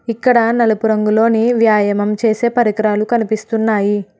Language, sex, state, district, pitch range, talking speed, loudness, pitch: Telugu, female, Telangana, Hyderabad, 210-230 Hz, 100 wpm, -14 LUFS, 220 Hz